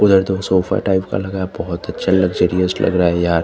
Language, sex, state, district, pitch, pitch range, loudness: Hindi, male, Chandigarh, Chandigarh, 95 Hz, 90-95 Hz, -17 LUFS